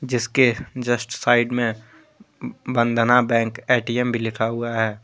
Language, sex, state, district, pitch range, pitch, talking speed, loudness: Hindi, male, Jharkhand, Deoghar, 115-125 Hz, 120 Hz, 130 wpm, -21 LUFS